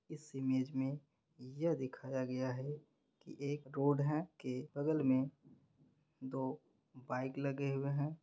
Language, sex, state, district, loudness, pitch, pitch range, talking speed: Hindi, male, Bihar, Supaul, -39 LUFS, 140 Hz, 130-150 Hz, 140 wpm